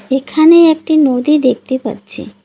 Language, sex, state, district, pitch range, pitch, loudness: Bengali, female, West Bengal, Cooch Behar, 255-315 Hz, 280 Hz, -11 LUFS